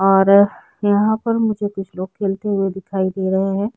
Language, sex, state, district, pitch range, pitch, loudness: Hindi, female, Chhattisgarh, Sukma, 190-205 Hz, 195 Hz, -18 LUFS